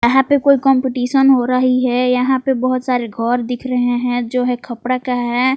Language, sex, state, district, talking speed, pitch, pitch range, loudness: Hindi, female, Jharkhand, Palamu, 215 wpm, 250 Hz, 245-260 Hz, -16 LUFS